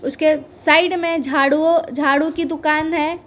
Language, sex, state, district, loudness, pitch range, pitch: Hindi, female, Gujarat, Valsad, -17 LUFS, 300-330 Hz, 310 Hz